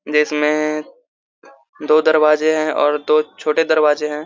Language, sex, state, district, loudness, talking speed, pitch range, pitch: Hindi, male, Chhattisgarh, Korba, -16 LUFS, 140 wpm, 150-155 Hz, 155 Hz